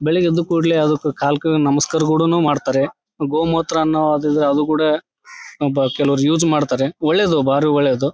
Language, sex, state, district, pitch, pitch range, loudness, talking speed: Kannada, male, Karnataka, Bellary, 150 Hz, 140-160 Hz, -17 LUFS, 125 wpm